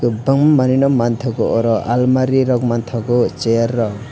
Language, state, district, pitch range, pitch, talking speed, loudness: Kokborok, Tripura, West Tripura, 115-130 Hz, 120 Hz, 115 wpm, -16 LUFS